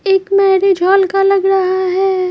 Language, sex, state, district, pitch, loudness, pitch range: Hindi, female, Bihar, Patna, 385 Hz, -12 LUFS, 375-390 Hz